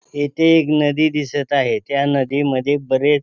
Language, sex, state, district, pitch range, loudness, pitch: Marathi, male, Maharashtra, Pune, 140-150 Hz, -17 LUFS, 145 Hz